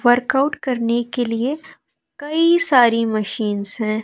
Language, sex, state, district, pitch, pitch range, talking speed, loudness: Hindi, female, Madhya Pradesh, Katni, 240 Hz, 225-280 Hz, 120 wpm, -18 LUFS